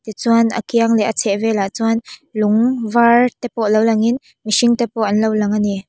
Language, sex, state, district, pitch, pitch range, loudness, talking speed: Mizo, female, Mizoram, Aizawl, 225 Hz, 215-235 Hz, -16 LUFS, 185 wpm